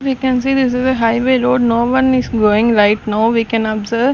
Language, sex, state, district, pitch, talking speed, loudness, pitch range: English, female, Chandigarh, Chandigarh, 235 Hz, 260 wpm, -14 LUFS, 225-260 Hz